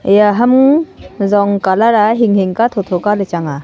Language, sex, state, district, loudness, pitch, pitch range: Wancho, female, Arunachal Pradesh, Longding, -12 LUFS, 205 Hz, 190-230 Hz